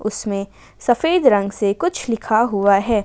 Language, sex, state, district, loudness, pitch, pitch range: Hindi, female, Jharkhand, Ranchi, -18 LUFS, 215 Hz, 200-240 Hz